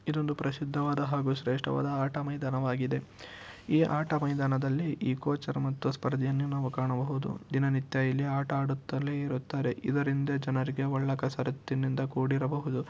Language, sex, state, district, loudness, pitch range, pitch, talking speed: Kannada, male, Karnataka, Shimoga, -31 LUFS, 130-140 Hz, 135 Hz, 115 wpm